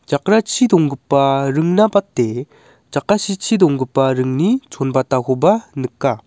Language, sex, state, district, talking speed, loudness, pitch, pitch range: Garo, male, Meghalaya, West Garo Hills, 85 wpm, -16 LUFS, 140 Hz, 135-200 Hz